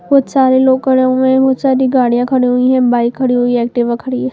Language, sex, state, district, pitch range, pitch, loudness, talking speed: Hindi, female, Bihar, Muzaffarpur, 245-260 Hz, 255 Hz, -12 LUFS, 265 wpm